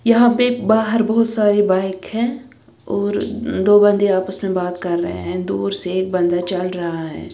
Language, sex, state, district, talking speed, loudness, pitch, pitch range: Hindi, female, Punjab, Kapurthala, 190 wpm, -18 LUFS, 195 Hz, 180-225 Hz